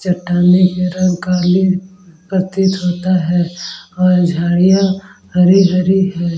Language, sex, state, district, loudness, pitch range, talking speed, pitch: Hindi, female, Bihar, Vaishali, -14 LUFS, 180-185 Hz, 95 wpm, 180 Hz